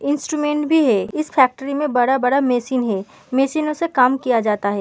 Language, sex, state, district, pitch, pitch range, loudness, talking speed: Hindi, female, Uttar Pradesh, Muzaffarnagar, 265 Hz, 245-295 Hz, -18 LUFS, 185 wpm